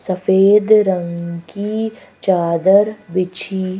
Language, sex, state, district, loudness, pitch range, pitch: Hindi, female, Madhya Pradesh, Bhopal, -16 LUFS, 180-205 Hz, 190 Hz